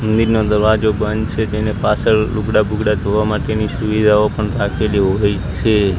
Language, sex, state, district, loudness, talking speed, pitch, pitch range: Gujarati, male, Gujarat, Gandhinagar, -16 LUFS, 150 wpm, 105 Hz, 105-110 Hz